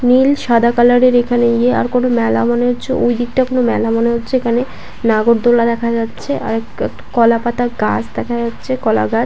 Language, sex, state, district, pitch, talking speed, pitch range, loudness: Bengali, female, West Bengal, Paschim Medinipur, 240 Hz, 155 wpm, 235-245 Hz, -15 LUFS